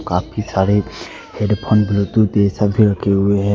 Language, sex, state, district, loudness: Hindi, male, Jharkhand, Deoghar, -16 LUFS